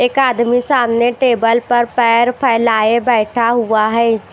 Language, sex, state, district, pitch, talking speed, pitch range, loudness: Hindi, female, Chhattisgarh, Raipur, 235 Hz, 140 wpm, 230-245 Hz, -13 LUFS